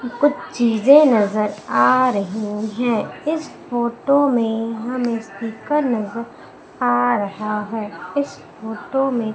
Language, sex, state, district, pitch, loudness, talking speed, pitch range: Hindi, female, Madhya Pradesh, Umaria, 230 Hz, -19 LUFS, 115 wpm, 215-255 Hz